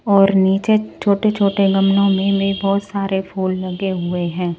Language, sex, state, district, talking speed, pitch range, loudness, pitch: Hindi, male, Delhi, New Delhi, 155 wpm, 190-200 Hz, -17 LUFS, 195 Hz